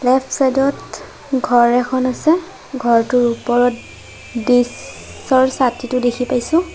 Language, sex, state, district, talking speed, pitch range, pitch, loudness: Assamese, female, Assam, Sonitpur, 115 wpm, 245-265 Hz, 250 Hz, -16 LUFS